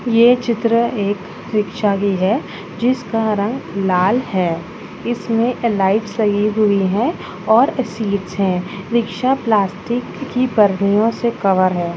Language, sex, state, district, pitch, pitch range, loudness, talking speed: Hindi, female, Bihar, Bhagalpur, 210 Hz, 195-235 Hz, -17 LUFS, 125 wpm